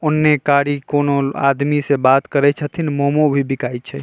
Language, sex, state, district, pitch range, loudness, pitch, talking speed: Bajjika, male, Bihar, Vaishali, 140-145 Hz, -16 LUFS, 140 Hz, 180 wpm